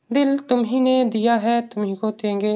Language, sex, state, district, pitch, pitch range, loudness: Hindi, male, Uttar Pradesh, Varanasi, 235 Hz, 215-255 Hz, -20 LUFS